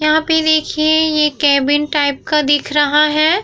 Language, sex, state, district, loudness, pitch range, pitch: Hindi, female, Bihar, Vaishali, -14 LUFS, 290-310 Hz, 300 Hz